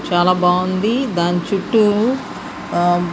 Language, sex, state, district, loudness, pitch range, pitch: Telugu, male, Andhra Pradesh, Guntur, -17 LUFS, 175-215 Hz, 185 Hz